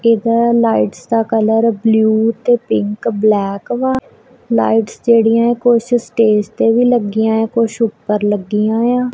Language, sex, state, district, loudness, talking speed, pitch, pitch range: Punjabi, female, Punjab, Kapurthala, -14 LUFS, 140 wpm, 225 Hz, 215-235 Hz